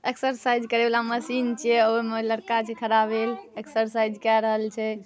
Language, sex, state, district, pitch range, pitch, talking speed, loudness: Maithili, female, Bihar, Saharsa, 220-235 Hz, 225 Hz, 165 wpm, -24 LUFS